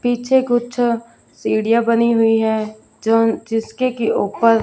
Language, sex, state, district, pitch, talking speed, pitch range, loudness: Hindi, female, Punjab, Fazilka, 230 Hz, 130 wpm, 225-240 Hz, -17 LUFS